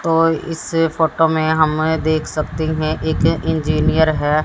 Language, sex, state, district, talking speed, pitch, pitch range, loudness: Hindi, female, Haryana, Jhajjar, 150 wpm, 160 Hz, 155-160 Hz, -17 LUFS